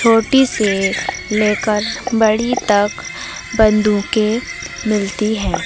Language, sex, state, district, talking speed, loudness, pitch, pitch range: Hindi, female, Madhya Pradesh, Umaria, 85 wpm, -16 LUFS, 215 Hz, 205-225 Hz